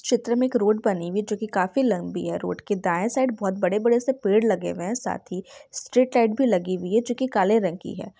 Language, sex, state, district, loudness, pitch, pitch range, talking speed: Hindi, female, Bihar, Jahanabad, -23 LUFS, 215 Hz, 185-245 Hz, 280 wpm